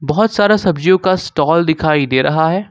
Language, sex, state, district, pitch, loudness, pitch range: Hindi, male, Jharkhand, Ranchi, 165 Hz, -14 LUFS, 155-185 Hz